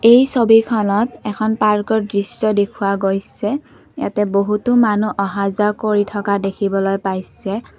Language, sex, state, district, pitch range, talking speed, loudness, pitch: Assamese, female, Assam, Kamrup Metropolitan, 200-220 Hz, 125 wpm, -17 LUFS, 210 Hz